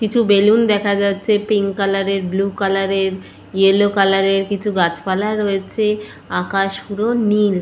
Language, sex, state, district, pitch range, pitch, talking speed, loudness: Bengali, female, West Bengal, Purulia, 195-210 Hz, 200 Hz, 140 wpm, -17 LUFS